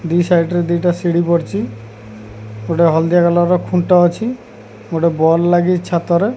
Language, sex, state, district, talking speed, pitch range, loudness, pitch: Odia, male, Odisha, Khordha, 130 wpm, 165-175 Hz, -15 LUFS, 170 Hz